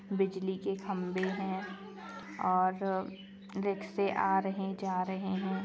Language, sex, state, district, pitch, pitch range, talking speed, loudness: Hindi, female, Jharkhand, Jamtara, 195 Hz, 190-195 Hz, 115 wpm, -34 LUFS